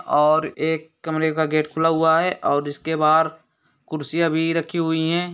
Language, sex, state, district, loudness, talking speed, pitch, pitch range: Hindi, male, Uttar Pradesh, Etah, -21 LUFS, 180 wpm, 160 Hz, 155-165 Hz